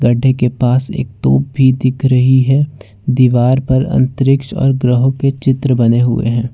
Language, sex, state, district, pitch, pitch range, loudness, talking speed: Hindi, male, Jharkhand, Ranchi, 130 Hz, 125-135 Hz, -13 LUFS, 165 wpm